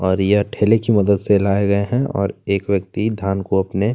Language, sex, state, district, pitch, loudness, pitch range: Hindi, male, Chhattisgarh, Kabirdham, 100 Hz, -18 LUFS, 95-105 Hz